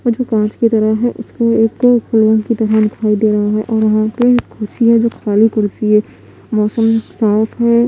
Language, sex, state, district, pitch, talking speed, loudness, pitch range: Hindi, female, Haryana, Jhajjar, 220 Hz, 190 wpm, -14 LUFS, 215-230 Hz